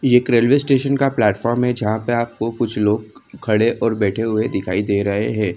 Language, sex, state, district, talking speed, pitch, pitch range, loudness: Hindi, female, Jharkhand, Jamtara, 215 wpm, 115 Hz, 105-120 Hz, -18 LUFS